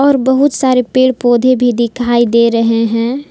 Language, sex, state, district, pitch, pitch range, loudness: Hindi, female, Jharkhand, Palamu, 245 Hz, 235-260 Hz, -12 LUFS